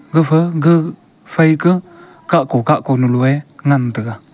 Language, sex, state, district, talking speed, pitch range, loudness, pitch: Wancho, male, Arunachal Pradesh, Longding, 110 wpm, 135-165 Hz, -15 LUFS, 155 Hz